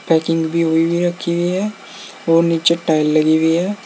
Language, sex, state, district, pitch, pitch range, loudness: Hindi, male, Uttar Pradesh, Saharanpur, 165 Hz, 160-175 Hz, -16 LUFS